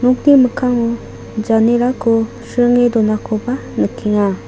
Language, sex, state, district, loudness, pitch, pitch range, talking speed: Garo, female, Meghalaya, South Garo Hills, -15 LUFS, 235 Hz, 220-250 Hz, 80 wpm